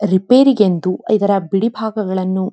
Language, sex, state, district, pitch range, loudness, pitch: Kannada, female, Karnataka, Dharwad, 190-220 Hz, -15 LUFS, 200 Hz